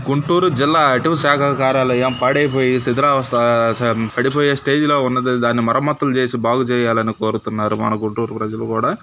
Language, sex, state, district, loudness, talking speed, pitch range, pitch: Telugu, male, Andhra Pradesh, Guntur, -16 LUFS, 140 wpm, 115-140 Hz, 125 Hz